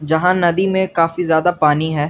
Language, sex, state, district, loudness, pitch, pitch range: Hindi, male, Jharkhand, Garhwa, -16 LUFS, 165 Hz, 160-180 Hz